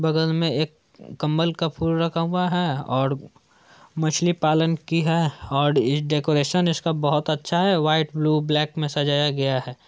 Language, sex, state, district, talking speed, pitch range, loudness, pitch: Hindi, male, Bihar, Saran, 170 wpm, 145-165 Hz, -22 LUFS, 155 Hz